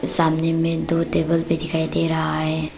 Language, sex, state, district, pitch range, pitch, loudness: Hindi, female, Arunachal Pradesh, Papum Pare, 160-165 Hz, 165 Hz, -20 LUFS